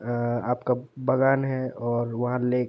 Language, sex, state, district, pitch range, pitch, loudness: Hindi, male, Uttar Pradesh, Jalaun, 120-130 Hz, 125 Hz, -26 LUFS